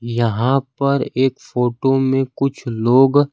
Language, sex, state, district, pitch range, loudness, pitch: Hindi, male, Bihar, Kaimur, 120-135 Hz, -18 LUFS, 130 Hz